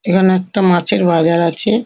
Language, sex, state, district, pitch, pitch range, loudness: Bengali, female, West Bengal, North 24 Parganas, 185 Hz, 170-195 Hz, -14 LUFS